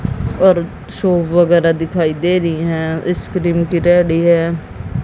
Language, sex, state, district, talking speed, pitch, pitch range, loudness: Hindi, female, Haryana, Jhajjar, 130 wpm, 170 Hz, 165-175 Hz, -15 LUFS